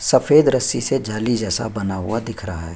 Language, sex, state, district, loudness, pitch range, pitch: Hindi, male, Bihar, Bhagalpur, -19 LUFS, 100-130 Hz, 110 Hz